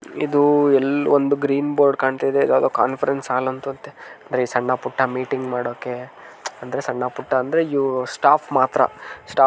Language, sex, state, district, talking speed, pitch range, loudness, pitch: Kannada, male, Karnataka, Dharwad, 160 wpm, 130-145 Hz, -20 LUFS, 135 Hz